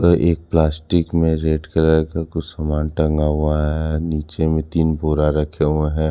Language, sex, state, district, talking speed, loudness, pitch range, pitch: Hindi, male, Punjab, Kapurthala, 185 wpm, -19 LUFS, 75-80 Hz, 80 Hz